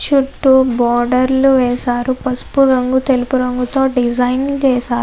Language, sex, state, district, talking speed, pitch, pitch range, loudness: Telugu, female, Andhra Pradesh, Anantapur, 120 wpm, 255 Hz, 245-265 Hz, -14 LUFS